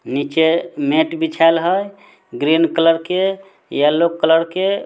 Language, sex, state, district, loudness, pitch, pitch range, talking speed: Maithili, male, Bihar, Samastipur, -16 LUFS, 170 Hz, 165-195 Hz, 125 wpm